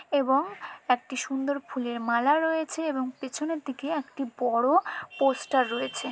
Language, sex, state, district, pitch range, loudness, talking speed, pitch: Bengali, female, West Bengal, Dakshin Dinajpur, 255-310 Hz, -28 LUFS, 125 wpm, 275 Hz